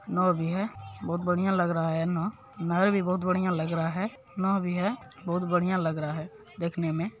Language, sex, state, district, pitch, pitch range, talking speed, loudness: Maithili, male, Bihar, Supaul, 180 Hz, 165-190 Hz, 210 wpm, -29 LUFS